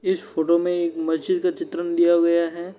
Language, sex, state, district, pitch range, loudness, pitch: Hindi, male, Uttar Pradesh, Varanasi, 170-185 Hz, -21 LUFS, 170 Hz